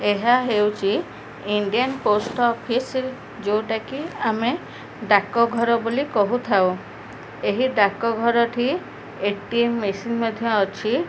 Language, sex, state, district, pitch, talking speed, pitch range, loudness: Odia, female, Odisha, Khordha, 230 Hz, 95 wpm, 205-240 Hz, -22 LUFS